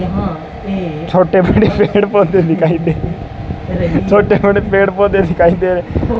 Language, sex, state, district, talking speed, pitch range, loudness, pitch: Hindi, male, Rajasthan, Bikaner, 135 wpm, 165-200 Hz, -13 LUFS, 185 Hz